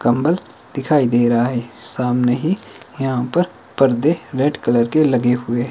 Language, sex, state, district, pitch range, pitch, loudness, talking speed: Hindi, male, Himachal Pradesh, Shimla, 120-150 Hz, 125 Hz, -18 LUFS, 160 wpm